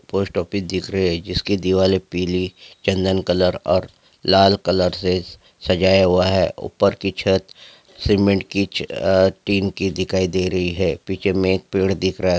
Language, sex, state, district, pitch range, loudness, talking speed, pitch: Hindi, male, Chhattisgarh, Bastar, 90-95 Hz, -19 LUFS, 180 wpm, 95 Hz